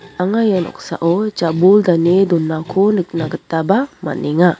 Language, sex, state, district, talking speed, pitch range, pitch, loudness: Garo, female, Meghalaya, West Garo Hills, 115 wpm, 165-195 Hz, 175 Hz, -16 LUFS